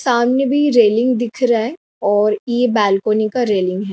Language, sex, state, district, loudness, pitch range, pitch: Hindi, female, Jharkhand, Sahebganj, -16 LUFS, 210-250 Hz, 230 Hz